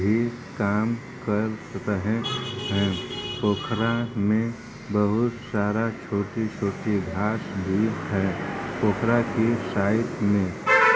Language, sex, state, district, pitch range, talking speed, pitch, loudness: Hindi, male, Uttar Pradesh, Varanasi, 100-115 Hz, 100 wpm, 110 Hz, -25 LUFS